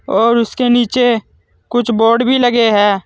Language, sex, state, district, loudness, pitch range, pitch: Hindi, male, Uttar Pradesh, Saharanpur, -13 LUFS, 225-245 Hz, 235 Hz